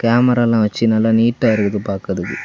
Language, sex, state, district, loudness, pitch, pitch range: Tamil, male, Tamil Nadu, Kanyakumari, -16 LUFS, 110 Hz, 100-115 Hz